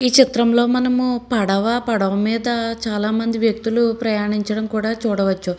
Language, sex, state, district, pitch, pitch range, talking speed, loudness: Telugu, female, Andhra Pradesh, Srikakulam, 225 Hz, 210-235 Hz, 140 wpm, -19 LUFS